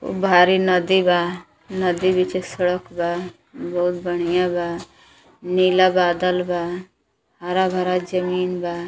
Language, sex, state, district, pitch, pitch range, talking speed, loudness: Bhojpuri, female, Uttar Pradesh, Deoria, 180 Hz, 175-185 Hz, 120 wpm, -20 LUFS